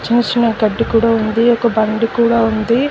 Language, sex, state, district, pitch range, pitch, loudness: Telugu, female, Telangana, Karimnagar, 225-235 Hz, 230 Hz, -14 LUFS